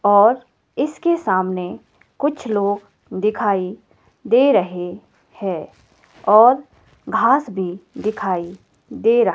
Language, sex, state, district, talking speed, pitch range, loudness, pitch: Hindi, female, Himachal Pradesh, Shimla, 95 wpm, 185-265 Hz, -19 LUFS, 210 Hz